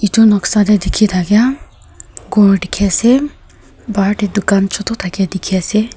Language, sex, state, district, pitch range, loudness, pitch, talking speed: Nagamese, female, Nagaland, Kohima, 195-215 Hz, -13 LUFS, 205 Hz, 150 wpm